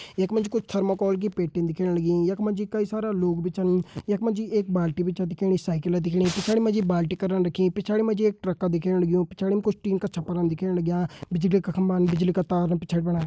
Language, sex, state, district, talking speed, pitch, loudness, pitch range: Hindi, male, Uttarakhand, Tehri Garhwal, 240 wpm, 185 Hz, -25 LUFS, 175-200 Hz